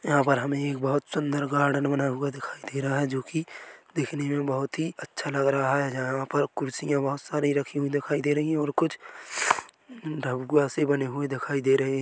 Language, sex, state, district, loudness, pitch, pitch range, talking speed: Hindi, male, Chhattisgarh, Bilaspur, -27 LUFS, 140 Hz, 135-145 Hz, 215 wpm